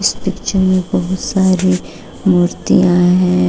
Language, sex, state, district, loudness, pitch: Hindi, female, Uttar Pradesh, Shamli, -14 LUFS, 180 Hz